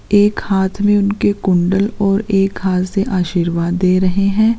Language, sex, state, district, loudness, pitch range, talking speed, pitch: Hindi, female, Uttarakhand, Uttarkashi, -15 LUFS, 185-205 Hz, 170 wpm, 195 Hz